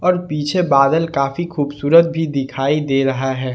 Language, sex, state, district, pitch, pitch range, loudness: Hindi, male, Jharkhand, Palamu, 145 Hz, 135-165 Hz, -17 LUFS